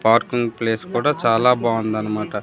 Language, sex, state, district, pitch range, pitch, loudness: Telugu, female, Andhra Pradesh, Manyam, 110-120 Hz, 115 Hz, -19 LUFS